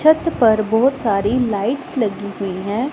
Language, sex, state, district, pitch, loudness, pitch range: Hindi, female, Punjab, Pathankot, 225 Hz, -18 LUFS, 205-265 Hz